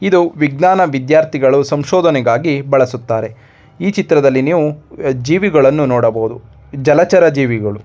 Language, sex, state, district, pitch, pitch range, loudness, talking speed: Kannada, male, Karnataka, Dharwad, 140 Hz, 125-165 Hz, -13 LUFS, 115 wpm